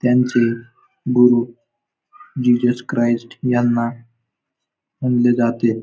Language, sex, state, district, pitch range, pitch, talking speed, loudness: Marathi, male, Maharashtra, Pune, 120-125 Hz, 120 Hz, 70 wpm, -18 LUFS